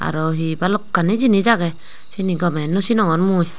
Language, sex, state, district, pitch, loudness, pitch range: Chakma, female, Tripura, Unakoti, 180 Hz, -18 LUFS, 165-205 Hz